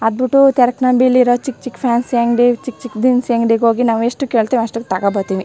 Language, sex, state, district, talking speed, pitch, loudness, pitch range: Kannada, female, Karnataka, Chamarajanagar, 220 wpm, 240 Hz, -14 LUFS, 230-255 Hz